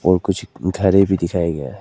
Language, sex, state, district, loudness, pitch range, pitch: Hindi, male, Arunachal Pradesh, Lower Dibang Valley, -18 LUFS, 85-95 Hz, 95 Hz